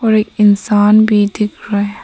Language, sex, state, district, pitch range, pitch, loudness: Hindi, female, Arunachal Pradesh, Papum Pare, 205-215 Hz, 210 Hz, -12 LUFS